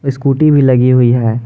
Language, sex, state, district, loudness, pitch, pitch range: Hindi, male, Jharkhand, Garhwa, -10 LUFS, 130 Hz, 125-140 Hz